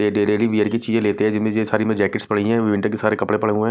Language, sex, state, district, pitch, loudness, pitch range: Hindi, male, Punjab, Kapurthala, 110 Hz, -19 LUFS, 105-110 Hz